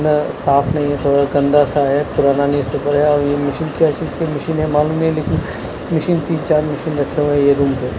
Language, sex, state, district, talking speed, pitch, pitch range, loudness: Hindi, male, Punjab, Kapurthala, 240 wpm, 145 Hz, 140-155 Hz, -16 LUFS